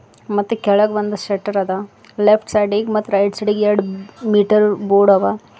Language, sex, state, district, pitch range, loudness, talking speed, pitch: Kannada, female, Karnataka, Bidar, 195-210 Hz, -17 LUFS, 150 wpm, 205 Hz